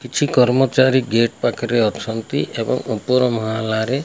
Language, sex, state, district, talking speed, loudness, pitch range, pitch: Odia, male, Odisha, Malkangiri, 120 wpm, -18 LUFS, 110-130 Hz, 120 Hz